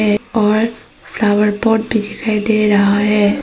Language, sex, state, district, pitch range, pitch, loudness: Hindi, female, Arunachal Pradesh, Papum Pare, 210-220 Hz, 210 Hz, -15 LUFS